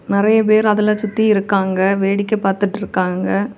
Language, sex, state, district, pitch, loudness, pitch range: Tamil, female, Tamil Nadu, Kanyakumari, 205 Hz, -16 LUFS, 195-215 Hz